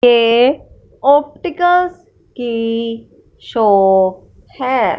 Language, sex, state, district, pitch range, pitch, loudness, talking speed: Hindi, male, Punjab, Fazilka, 230-290 Hz, 240 Hz, -14 LUFS, 60 wpm